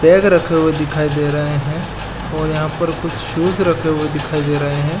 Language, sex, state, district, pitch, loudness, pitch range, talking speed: Hindi, male, Chhattisgarh, Balrampur, 155 Hz, -17 LUFS, 150-170 Hz, 215 wpm